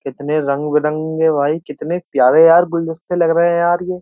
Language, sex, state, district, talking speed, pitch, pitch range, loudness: Hindi, male, Uttar Pradesh, Jyotiba Phule Nagar, 195 wpm, 160 Hz, 150-170 Hz, -15 LUFS